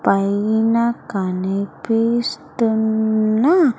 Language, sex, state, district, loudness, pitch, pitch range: Telugu, female, Andhra Pradesh, Sri Satya Sai, -18 LUFS, 220 Hz, 200-235 Hz